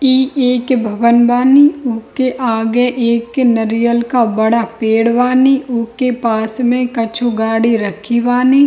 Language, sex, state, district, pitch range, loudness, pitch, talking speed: Hindi, female, Bihar, Darbhanga, 230-250 Hz, -13 LUFS, 240 Hz, 165 wpm